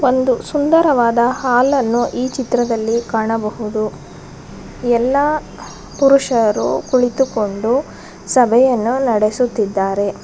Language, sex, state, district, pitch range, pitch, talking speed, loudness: Kannada, female, Karnataka, Bangalore, 220-260 Hz, 240 Hz, 60 wpm, -16 LUFS